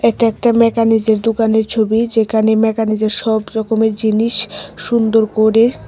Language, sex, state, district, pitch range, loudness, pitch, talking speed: Bengali, female, Tripura, West Tripura, 220-230 Hz, -14 LUFS, 220 Hz, 120 wpm